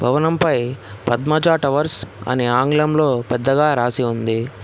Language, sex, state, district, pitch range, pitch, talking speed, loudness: Telugu, male, Telangana, Hyderabad, 120-150 Hz, 125 Hz, 115 wpm, -18 LUFS